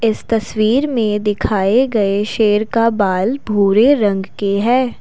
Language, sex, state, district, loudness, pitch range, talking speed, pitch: Hindi, female, Assam, Kamrup Metropolitan, -15 LUFS, 205-230 Hz, 145 wpm, 215 Hz